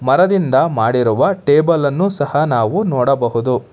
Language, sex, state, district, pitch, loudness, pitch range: Kannada, male, Karnataka, Bangalore, 145 Hz, -15 LUFS, 125-170 Hz